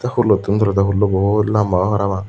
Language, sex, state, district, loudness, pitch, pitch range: Chakma, male, Tripura, Dhalai, -16 LUFS, 100 Hz, 100-105 Hz